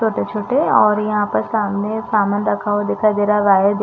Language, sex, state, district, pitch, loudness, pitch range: Hindi, female, Chhattisgarh, Raigarh, 210 Hz, -17 LUFS, 205-215 Hz